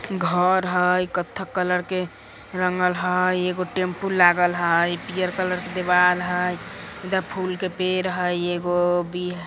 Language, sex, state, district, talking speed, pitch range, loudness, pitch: Bajjika, female, Bihar, Vaishali, 150 wpm, 180-185 Hz, -22 LUFS, 180 Hz